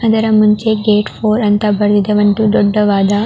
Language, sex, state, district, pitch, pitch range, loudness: Kannada, female, Karnataka, Raichur, 210 Hz, 205-215 Hz, -12 LUFS